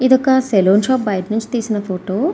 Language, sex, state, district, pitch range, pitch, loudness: Telugu, female, Andhra Pradesh, Srikakulam, 195-260 Hz, 220 Hz, -16 LUFS